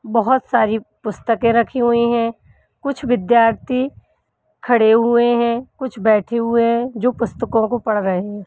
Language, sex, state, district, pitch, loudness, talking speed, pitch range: Hindi, female, Uttarakhand, Uttarkashi, 235 Hz, -17 LUFS, 150 wpm, 225-245 Hz